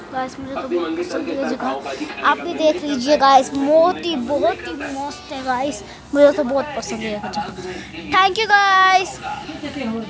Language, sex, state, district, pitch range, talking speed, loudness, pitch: Hindi, female, Uttar Pradesh, Muzaffarnagar, 255-320 Hz, 180 wpm, -18 LUFS, 280 Hz